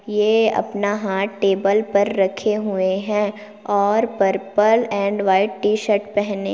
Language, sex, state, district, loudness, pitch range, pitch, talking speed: Hindi, female, Chhattisgarh, Kabirdham, -19 LUFS, 195-210 Hz, 205 Hz, 140 wpm